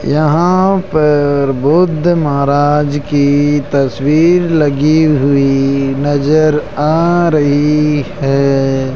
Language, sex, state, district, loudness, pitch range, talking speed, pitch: Hindi, male, Rajasthan, Jaipur, -12 LUFS, 140-155 Hz, 80 wpm, 145 Hz